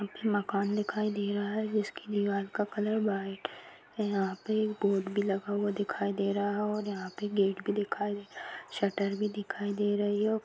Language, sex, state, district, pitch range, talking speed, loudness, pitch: Hindi, female, Chhattisgarh, Jashpur, 200-210 Hz, 205 wpm, -32 LUFS, 205 Hz